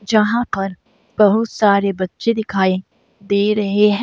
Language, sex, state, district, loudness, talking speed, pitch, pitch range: Hindi, female, Uttar Pradesh, Saharanpur, -17 LUFS, 135 wpm, 205 Hz, 195-215 Hz